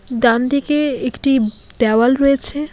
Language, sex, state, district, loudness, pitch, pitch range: Bengali, female, West Bengal, Alipurduar, -16 LUFS, 270 Hz, 235-280 Hz